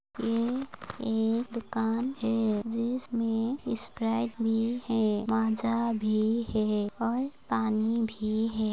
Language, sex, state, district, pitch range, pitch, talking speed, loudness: Hindi, female, Rajasthan, Churu, 220-235 Hz, 225 Hz, 105 wpm, -29 LUFS